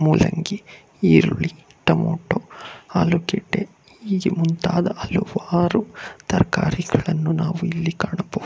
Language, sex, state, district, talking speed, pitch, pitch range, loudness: Kannada, male, Karnataka, Bangalore, 80 wpm, 175 Hz, 165-195 Hz, -21 LUFS